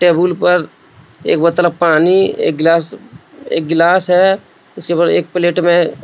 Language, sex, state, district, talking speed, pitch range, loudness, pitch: Hindi, male, Jharkhand, Deoghar, 160 wpm, 170-180 Hz, -13 LUFS, 175 Hz